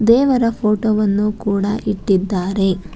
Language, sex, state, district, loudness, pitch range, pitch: Kannada, female, Karnataka, Bangalore, -17 LUFS, 195-220 Hz, 210 Hz